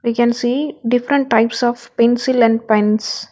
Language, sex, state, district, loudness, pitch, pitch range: English, female, Telangana, Hyderabad, -16 LUFS, 240 Hz, 230-245 Hz